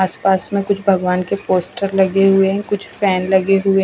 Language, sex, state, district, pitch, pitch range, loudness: Hindi, female, Odisha, Khordha, 195 Hz, 190-195 Hz, -16 LUFS